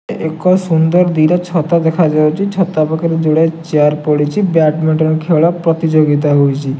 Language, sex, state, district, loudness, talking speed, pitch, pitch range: Odia, male, Odisha, Nuapada, -13 LUFS, 125 wpm, 160 Hz, 155-170 Hz